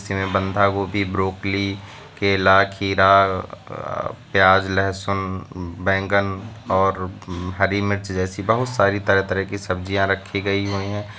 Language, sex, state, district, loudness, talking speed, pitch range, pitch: Hindi, male, Uttar Pradesh, Lucknow, -20 LUFS, 120 wpm, 95-100 Hz, 100 Hz